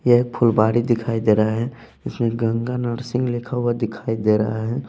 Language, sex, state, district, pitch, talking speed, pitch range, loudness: Hindi, male, Bihar, West Champaran, 115 Hz, 185 wpm, 115-120 Hz, -21 LUFS